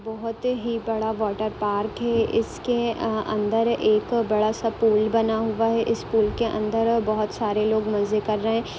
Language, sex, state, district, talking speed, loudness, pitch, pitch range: Hindi, female, Uttar Pradesh, Budaun, 185 wpm, -23 LUFS, 220 Hz, 215-230 Hz